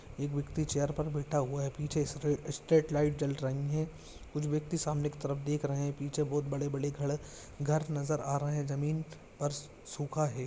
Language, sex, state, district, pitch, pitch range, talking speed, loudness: Hindi, male, Andhra Pradesh, Visakhapatnam, 145 Hz, 140-150 Hz, 205 wpm, -34 LUFS